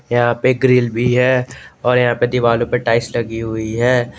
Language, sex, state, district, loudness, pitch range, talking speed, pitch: Hindi, male, Jharkhand, Garhwa, -16 LUFS, 115-125 Hz, 200 wpm, 120 Hz